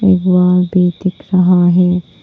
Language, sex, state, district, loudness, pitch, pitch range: Hindi, female, Arunachal Pradesh, Papum Pare, -12 LUFS, 180 Hz, 180-185 Hz